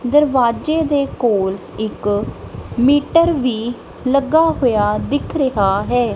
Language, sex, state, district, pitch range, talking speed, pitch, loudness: Punjabi, female, Punjab, Kapurthala, 220-290 Hz, 105 wpm, 250 Hz, -17 LUFS